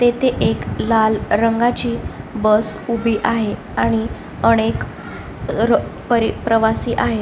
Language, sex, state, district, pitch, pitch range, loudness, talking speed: Marathi, female, Maharashtra, Solapur, 225 Hz, 215-235 Hz, -18 LUFS, 90 wpm